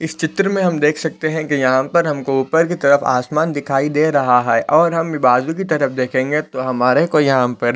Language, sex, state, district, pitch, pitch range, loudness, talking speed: Hindi, male, Chhattisgarh, Raigarh, 150 Hz, 130-160 Hz, -16 LUFS, 230 wpm